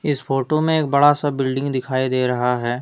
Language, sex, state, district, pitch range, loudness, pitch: Hindi, male, Jharkhand, Deoghar, 130-145 Hz, -19 LUFS, 135 Hz